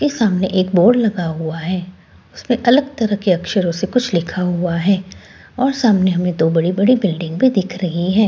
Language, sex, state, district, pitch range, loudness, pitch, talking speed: Hindi, female, Delhi, New Delhi, 175-225 Hz, -17 LUFS, 185 Hz, 195 wpm